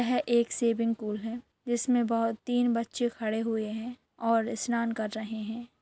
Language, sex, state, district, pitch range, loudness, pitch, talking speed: Hindi, female, Bihar, Purnia, 225-240 Hz, -30 LUFS, 230 Hz, 175 wpm